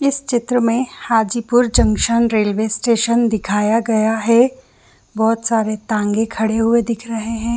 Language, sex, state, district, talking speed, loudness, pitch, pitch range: Hindi, female, Jharkhand, Jamtara, 135 wpm, -17 LUFS, 225 Hz, 220-235 Hz